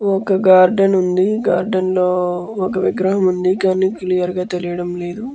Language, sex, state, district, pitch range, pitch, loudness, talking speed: Telugu, male, Andhra Pradesh, Guntur, 180-195 Hz, 185 Hz, -16 LUFS, 155 wpm